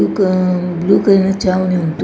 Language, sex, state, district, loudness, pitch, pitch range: Kannada, female, Karnataka, Dakshina Kannada, -14 LUFS, 185 Hz, 180-190 Hz